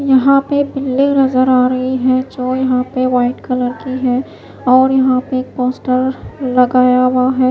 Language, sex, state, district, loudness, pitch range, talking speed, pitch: Hindi, female, Maharashtra, Mumbai Suburban, -14 LUFS, 255-265 Hz, 170 wpm, 255 Hz